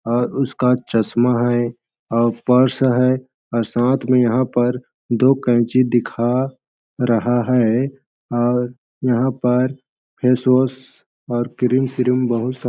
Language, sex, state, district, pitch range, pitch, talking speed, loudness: Hindi, male, Chhattisgarh, Balrampur, 120-130 Hz, 125 Hz, 130 wpm, -18 LUFS